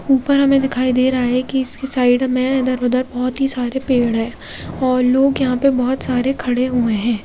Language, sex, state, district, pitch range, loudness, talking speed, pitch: Hindi, female, Bihar, Kaimur, 250-265 Hz, -16 LUFS, 215 wpm, 255 Hz